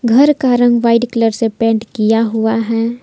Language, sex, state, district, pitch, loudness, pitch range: Hindi, female, Jharkhand, Palamu, 230 Hz, -13 LUFS, 225-240 Hz